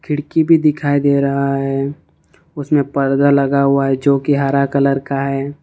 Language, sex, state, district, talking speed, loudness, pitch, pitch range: Hindi, male, Jharkhand, Ranchi, 170 wpm, -15 LUFS, 140 Hz, 140-145 Hz